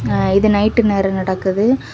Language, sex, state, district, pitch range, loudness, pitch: Tamil, female, Tamil Nadu, Kanyakumari, 190-215 Hz, -15 LUFS, 200 Hz